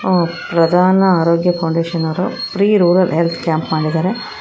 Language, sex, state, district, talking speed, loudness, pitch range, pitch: Kannada, female, Karnataka, Koppal, 120 wpm, -15 LUFS, 165-185 Hz, 175 Hz